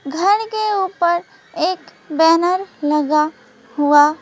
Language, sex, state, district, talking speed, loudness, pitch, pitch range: Hindi, female, West Bengal, Alipurduar, 100 wpm, -17 LUFS, 325 Hz, 300-365 Hz